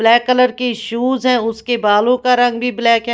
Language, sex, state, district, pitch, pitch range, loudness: Hindi, female, Maharashtra, Washim, 240 Hz, 230-250 Hz, -15 LUFS